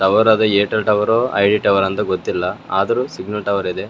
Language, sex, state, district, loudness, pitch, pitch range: Kannada, male, Karnataka, Raichur, -17 LUFS, 105 Hz, 100-110 Hz